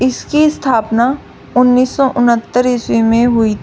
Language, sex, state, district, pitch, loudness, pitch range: Hindi, female, Uttar Pradesh, Shamli, 250 Hz, -13 LUFS, 230-260 Hz